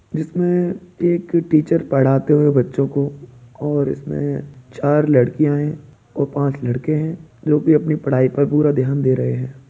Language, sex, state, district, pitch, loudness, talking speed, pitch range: Hindi, male, Uttar Pradesh, Budaun, 145 Hz, -18 LUFS, 155 wpm, 130-155 Hz